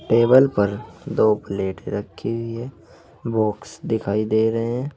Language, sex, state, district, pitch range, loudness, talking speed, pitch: Hindi, male, Uttar Pradesh, Saharanpur, 105-120 Hz, -21 LUFS, 145 wpm, 115 Hz